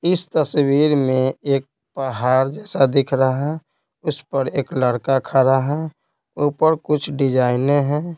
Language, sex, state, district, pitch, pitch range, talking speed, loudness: Hindi, male, Bihar, Patna, 140 Hz, 135-150 Hz, 140 wpm, -19 LUFS